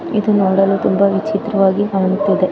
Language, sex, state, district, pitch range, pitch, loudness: Kannada, female, Karnataka, Bellary, 195-205 Hz, 195 Hz, -15 LUFS